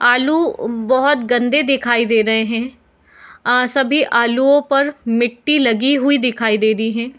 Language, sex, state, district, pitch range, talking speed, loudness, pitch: Hindi, female, Bihar, Madhepura, 230-275 Hz, 150 wpm, -15 LUFS, 245 Hz